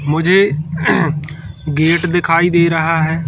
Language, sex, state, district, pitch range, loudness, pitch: Hindi, male, Madhya Pradesh, Katni, 155-170 Hz, -14 LUFS, 160 Hz